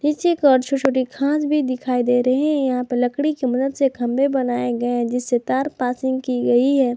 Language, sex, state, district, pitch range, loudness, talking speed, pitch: Hindi, female, Jharkhand, Garhwa, 245-275 Hz, -20 LUFS, 230 wpm, 260 Hz